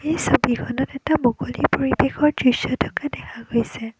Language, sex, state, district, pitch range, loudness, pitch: Assamese, female, Assam, Kamrup Metropolitan, 235-300 Hz, -21 LUFS, 265 Hz